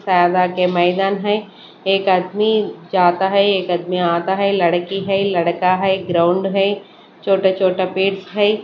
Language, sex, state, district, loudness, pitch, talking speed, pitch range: Hindi, female, Maharashtra, Mumbai Suburban, -17 LUFS, 190 Hz, 160 wpm, 180-195 Hz